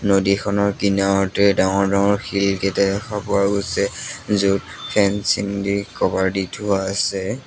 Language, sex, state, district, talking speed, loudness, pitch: Assamese, male, Assam, Sonitpur, 130 wpm, -19 LUFS, 100 Hz